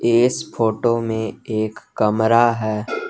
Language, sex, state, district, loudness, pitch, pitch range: Hindi, male, Jharkhand, Garhwa, -19 LUFS, 115 Hz, 110-120 Hz